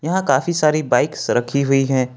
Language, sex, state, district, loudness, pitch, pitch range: Hindi, male, Jharkhand, Ranchi, -18 LUFS, 140 Hz, 130-155 Hz